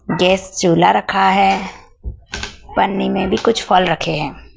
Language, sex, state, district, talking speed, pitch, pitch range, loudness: Hindi, female, Madhya Pradesh, Dhar, 145 wpm, 190 Hz, 175-190 Hz, -15 LUFS